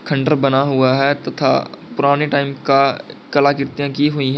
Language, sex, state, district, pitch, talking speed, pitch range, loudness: Hindi, male, Uttar Pradesh, Lalitpur, 140 Hz, 180 wpm, 135-145 Hz, -16 LUFS